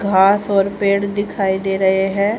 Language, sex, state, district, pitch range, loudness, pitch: Hindi, male, Haryana, Charkhi Dadri, 195-200 Hz, -17 LUFS, 200 Hz